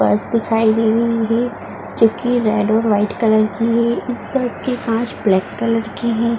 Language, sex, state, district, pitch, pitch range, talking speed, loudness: Hindi, female, Uttar Pradesh, Muzaffarnagar, 230 Hz, 220-235 Hz, 180 wpm, -17 LUFS